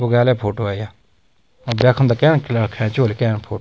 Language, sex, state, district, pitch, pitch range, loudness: Garhwali, male, Uttarakhand, Tehri Garhwal, 115 Hz, 110-125 Hz, -18 LUFS